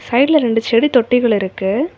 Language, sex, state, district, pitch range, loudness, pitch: Tamil, female, Tamil Nadu, Kanyakumari, 225-270 Hz, -15 LUFS, 240 Hz